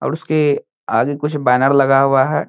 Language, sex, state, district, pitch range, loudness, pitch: Hindi, male, Bihar, Saharsa, 135-150 Hz, -15 LUFS, 140 Hz